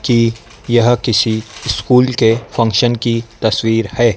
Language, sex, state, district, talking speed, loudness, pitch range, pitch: Hindi, male, Madhya Pradesh, Dhar, 130 wpm, -14 LUFS, 110-120 Hz, 115 Hz